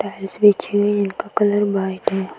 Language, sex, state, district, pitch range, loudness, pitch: Hindi, female, Bihar, Saran, 195-205 Hz, -19 LUFS, 200 Hz